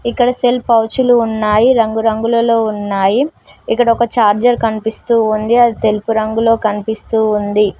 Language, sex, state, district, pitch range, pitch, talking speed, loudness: Telugu, female, Telangana, Mahabubabad, 215-235 Hz, 225 Hz, 130 wpm, -14 LUFS